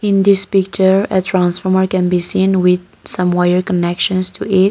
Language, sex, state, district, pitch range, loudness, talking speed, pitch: English, female, Nagaland, Kohima, 180-195 Hz, -14 LUFS, 180 wpm, 185 Hz